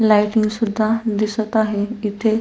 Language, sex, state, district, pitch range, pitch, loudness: Marathi, female, Maharashtra, Solapur, 210-220 Hz, 215 Hz, -19 LUFS